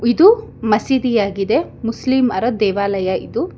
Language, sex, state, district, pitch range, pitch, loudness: Kannada, female, Karnataka, Bangalore, 200-260 Hz, 230 Hz, -17 LUFS